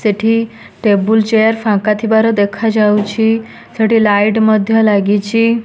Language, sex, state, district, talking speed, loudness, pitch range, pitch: Odia, female, Odisha, Nuapada, 105 wpm, -13 LUFS, 210-225 Hz, 220 Hz